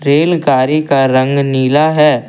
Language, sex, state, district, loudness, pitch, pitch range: Hindi, male, Assam, Kamrup Metropolitan, -12 LUFS, 140 Hz, 130-150 Hz